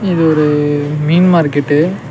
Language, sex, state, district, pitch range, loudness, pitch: Tamil, male, Tamil Nadu, Nilgiris, 145-170 Hz, -12 LUFS, 150 Hz